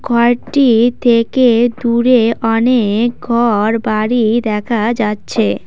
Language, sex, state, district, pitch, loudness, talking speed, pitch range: Bengali, female, West Bengal, Cooch Behar, 235 Hz, -13 LUFS, 75 wpm, 225-240 Hz